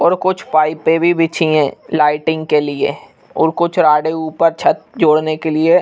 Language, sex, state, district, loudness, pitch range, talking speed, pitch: Hindi, male, Madhya Pradesh, Bhopal, -15 LUFS, 155-170 Hz, 185 wpm, 160 Hz